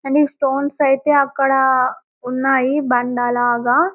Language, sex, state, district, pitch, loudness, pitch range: Telugu, female, Telangana, Karimnagar, 270 Hz, -17 LUFS, 250-280 Hz